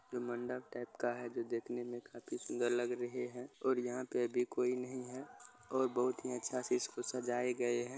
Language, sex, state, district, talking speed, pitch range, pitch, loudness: Maithili, male, Bihar, Supaul, 210 wpm, 120-125 Hz, 125 Hz, -39 LUFS